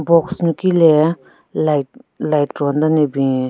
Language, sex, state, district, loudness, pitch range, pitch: Rengma, female, Nagaland, Kohima, -16 LUFS, 145-165 Hz, 155 Hz